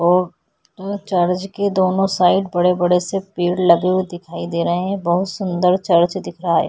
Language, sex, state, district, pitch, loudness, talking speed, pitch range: Hindi, female, Chhattisgarh, Korba, 180 Hz, -18 LUFS, 195 wpm, 175-190 Hz